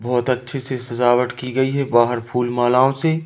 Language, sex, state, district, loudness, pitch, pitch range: Hindi, male, Madhya Pradesh, Katni, -19 LUFS, 125 Hz, 120-130 Hz